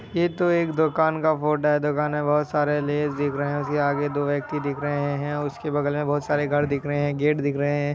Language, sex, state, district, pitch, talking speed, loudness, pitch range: Hindi, male, Bihar, Kishanganj, 145 Hz, 255 wpm, -24 LUFS, 145-150 Hz